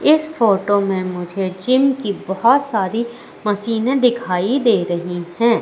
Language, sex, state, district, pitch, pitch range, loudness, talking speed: Hindi, female, Madhya Pradesh, Katni, 220 Hz, 190-240 Hz, -18 LUFS, 140 wpm